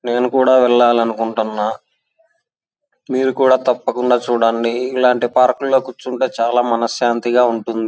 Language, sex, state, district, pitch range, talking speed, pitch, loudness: Telugu, male, Andhra Pradesh, Anantapur, 115-130 Hz, 90 wpm, 125 Hz, -16 LUFS